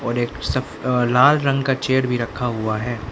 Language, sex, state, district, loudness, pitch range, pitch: Hindi, male, Arunachal Pradesh, Lower Dibang Valley, -20 LUFS, 120-130 Hz, 125 Hz